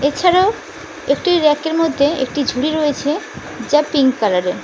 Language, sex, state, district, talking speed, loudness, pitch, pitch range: Bengali, female, West Bengal, Cooch Behar, 130 wpm, -16 LUFS, 295 Hz, 270-320 Hz